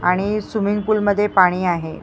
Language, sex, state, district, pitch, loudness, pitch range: Marathi, female, Maharashtra, Mumbai Suburban, 205 Hz, -18 LUFS, 180-210 Hz